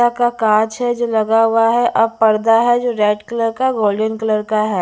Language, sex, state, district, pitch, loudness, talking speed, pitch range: Hindi, female, Bihar, West Champaran, 225 Hz, -15 LUFS, 225 wpm, 215-240 Hz